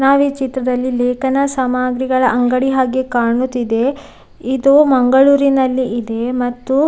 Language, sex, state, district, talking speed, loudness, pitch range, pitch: Kannada, female, Karnataka, Dakshina Kannada, 105 wpm, -15 LUFS, 250-270 Hz, 260 Hz